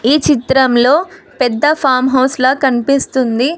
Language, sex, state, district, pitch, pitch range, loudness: Telugu, female, Telangana, Hyderabad, 265 Hz, 255-290 Hz, -12 LUFS